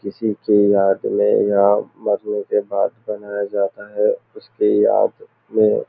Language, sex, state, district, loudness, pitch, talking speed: Hindi, male, Maharashtra, Nagpur, -18 LUFS, 115 Hz, 145 wpm